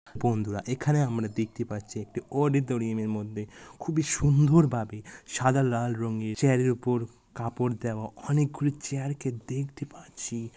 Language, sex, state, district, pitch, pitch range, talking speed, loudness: Bengali, male, West Bengal, Malda, 120 Hz, 110-140 Hz, 135 wpm, -28 LUFS